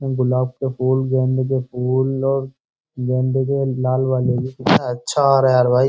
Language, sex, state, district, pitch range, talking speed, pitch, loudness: Hindi, male, Uttar Pradesh, Jyotiba Phule Nagar, 125-135 Hz, 195 wpm, 130 Hz, -19 LUFS